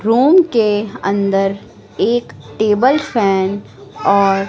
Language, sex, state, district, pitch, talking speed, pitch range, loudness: Hindi, female, Madhya Pradesh, Katni, 205 Hz, 95 wpm, 195-240 Hz, -15 LUFS